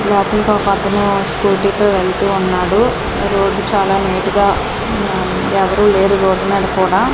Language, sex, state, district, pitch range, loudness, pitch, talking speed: Telugu, female, Andhra Pradesh, Manyam, 195-200 Hz, -14 LUFS, 195 Hz, 120 wpm